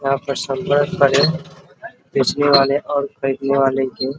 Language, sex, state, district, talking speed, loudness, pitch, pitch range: Hindi, male, Bihar, Muzaffarpur, 155 wpm, -17 LUFS, 140 Hz, 135-145 Hz